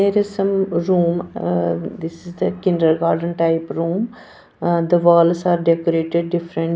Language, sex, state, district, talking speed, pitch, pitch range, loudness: English, female, Punjab, Pathankot, 150 wpm, 170 Hz, 165-175 Hz, -18 LUFS